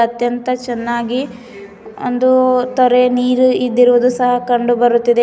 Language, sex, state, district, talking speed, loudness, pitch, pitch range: Kannada, female, Karnataka, Bidar, 105 wpm, -14 LUFS, 245 Hz, 240-250 Hz